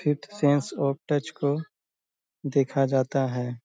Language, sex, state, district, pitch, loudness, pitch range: Hindi, male, Bihar, Bhagalpur, 140 Hz, -26 LUFS, 135-145 Hz